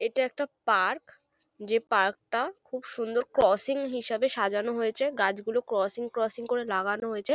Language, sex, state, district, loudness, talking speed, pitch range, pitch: Bengali, female, West Bengal, North 24 Parganas, -28 LUFS, 155 wpm, 210-265 Hz, 235 Hz